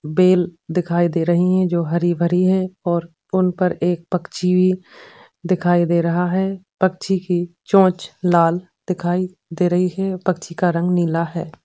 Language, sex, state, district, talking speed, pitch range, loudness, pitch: Hindi, female, Uttar Pradesh, Jalaun, 155 wpm, 170-185 Hz, -19 LUFS, 180 Hz